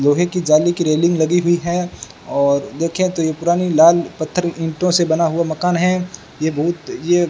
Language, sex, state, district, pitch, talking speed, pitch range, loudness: Hindi, male, Rajasthan, Bikaner, 170 Hz, 205 wpm, 160-175 Hz, -17 LUFS